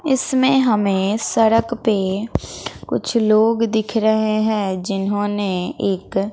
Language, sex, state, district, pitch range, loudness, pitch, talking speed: Hindi, female, Bihar, West Champaran, 200-230 Hz, -18 LUFS, 215 Hz, 105 wpm